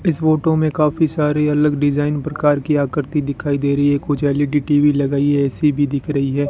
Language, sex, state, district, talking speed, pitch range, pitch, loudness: Hindi, male, Rajasthan, Bikaner, 220 wpm, 145-150 Hz, 145 Hz, -17 LUFS